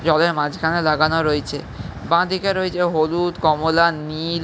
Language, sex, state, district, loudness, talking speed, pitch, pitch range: Bengali, male, West Bengal, Jhargram, -19 LUFS, 150 wpm, 160 Hz, 150-170 Hz